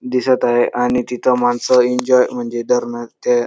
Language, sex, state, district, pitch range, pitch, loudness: Marathi, male, Maharashtra, Dhule, 120-125 Hz, 125 Hz, -16 LUFS